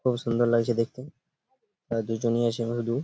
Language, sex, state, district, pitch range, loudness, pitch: Bengali, male, West Bengal, Purulia, 115-130 Hz, -27 LUFS, 120 Hz